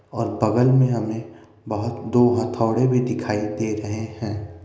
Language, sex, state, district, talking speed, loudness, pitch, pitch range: Maithili, male, Bihar, Begusarai, 165 wpm, -22 LUFS, 110 Hz, 105-120 Hz